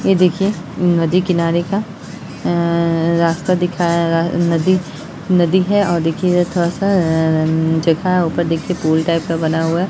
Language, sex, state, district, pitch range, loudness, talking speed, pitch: Hindi, male, Bihar, Jahanabad, 165-180 Hz, -16 LUFS, 170 wpm, 170 Hz